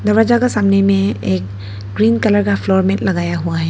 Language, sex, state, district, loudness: Hindi, female, Arunachal Pradesh, Papum Pare, -15 LUFS